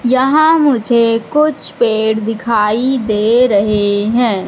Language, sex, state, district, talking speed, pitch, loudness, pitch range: Hindi, female, Madhya Pradesh, Katni, 105 wpm, 230 Hz, -13 LUFS, 215-255 Hz